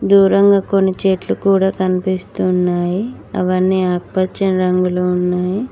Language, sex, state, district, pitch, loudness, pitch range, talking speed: Telugu, female, Telangana, Mahabubabad, 185 Hz, -16 LUFS, 180-195 Hz, 105 wpm